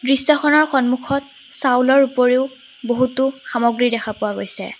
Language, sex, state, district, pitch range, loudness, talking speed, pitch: Assamese, female, Assam, Sonitpur, 245-275 Hz, -18 LUFS, 115 wpm, 260 Hz